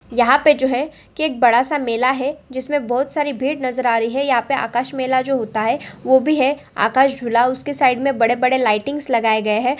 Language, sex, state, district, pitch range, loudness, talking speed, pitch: Hindi, female, Jharkhand, Sahebganj, 240-275 Hz, -18 LUFS, 225 wpm, 260 Hz